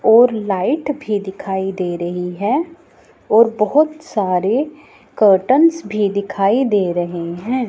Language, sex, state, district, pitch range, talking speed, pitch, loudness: Hindi, female, Punjab, Pathankot, 190-270 Hz, 125 wpm, 210 Hz, -17 LUFS